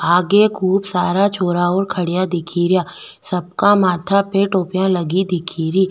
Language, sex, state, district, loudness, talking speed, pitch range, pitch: Rajasthani, female, Rajasthan, Nagaur, -17 LUFS, 150 wpm, 175-195 Hz, 185 Hz